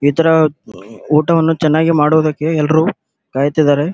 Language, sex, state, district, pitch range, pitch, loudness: Kannada, male, Karnataka, Gulbarga, 150-160 Hz, 155 Hz, -14 LUFS